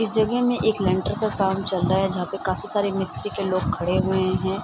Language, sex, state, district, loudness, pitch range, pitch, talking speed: Hindi, female, Bihar, Sitamarhi, -23 LUFS, 185-210 Hz, 190 Hz, 260 wpm